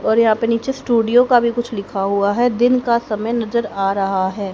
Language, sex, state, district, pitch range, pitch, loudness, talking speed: Hindi, female, Haryana, Jhajjar, 200-240 Hz, 230 Hz, -17 LUFS, 240 wpm